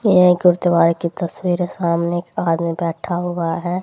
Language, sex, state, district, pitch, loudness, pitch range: Hindi, female, Haryana, Rohtak, 175 Hz, -18 LUFS, 170-180 Hz